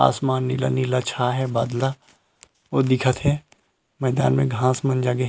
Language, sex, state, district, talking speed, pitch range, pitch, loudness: Chhattisgarhi, male, Chhattisgarh, Rajnandgaon, 145 wpm, 125-135 Hz, 130 Hz, -22 LUFS